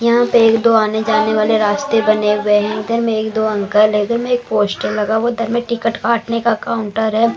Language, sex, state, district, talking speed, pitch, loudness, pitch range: Hindi, female, Maharashtra, Mumbai Suburban, 235 wpm, 220 Hz, -15 LUFS, 215-230 Hz